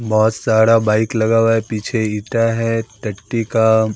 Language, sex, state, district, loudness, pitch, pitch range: Hindi, male, Bihar, Katihar, -16 LUFS, 110 Hz, 110-115 Hz